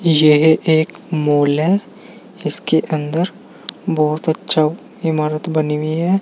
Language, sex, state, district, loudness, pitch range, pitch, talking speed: Hindi, male, Uttar Pradesh, Saharanpur, -17 LUFS, 150-165 Hz, 155 Hz, 115 wpm